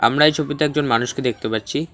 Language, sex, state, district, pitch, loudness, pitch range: Bengali, male, West Bengal, Alipurduar, 145 Hz, -19 LUFS, 120-150 Hz